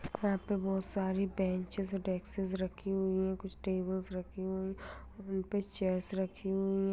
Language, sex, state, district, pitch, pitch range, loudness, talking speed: Hindi, female, Bihar, Darbhanga, 190 Hz, 190-195 Hz, -36 LUFS, 165 wpm